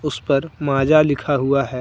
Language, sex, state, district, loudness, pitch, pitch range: Hindi, male, Jharkhand, Deoghar, -18 LUFS, 140 Hz, 135-150 Hz